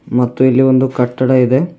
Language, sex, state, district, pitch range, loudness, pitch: Kannada, male, Karnataka, Bidar, 125-130 Hz, -13 LUFS, 130 Hz